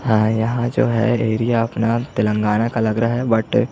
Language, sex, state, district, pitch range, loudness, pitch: Hindi, male, Chhattisgarh, Jashpur, 110-120 Hz, -18 LUFS, 115 Hz